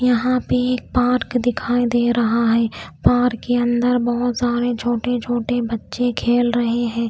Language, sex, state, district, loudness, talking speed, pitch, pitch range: Hindi, female, Delhi, New Delhi, -19 LUFS, 160 wpm, 240 Hz, 240-245 Hz